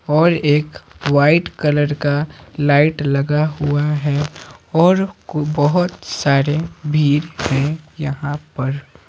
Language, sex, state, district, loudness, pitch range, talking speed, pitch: Hindi, male, Bihar, Patna, -17 LUFS, 145-155 Hz, 105 wpm, 150 Hz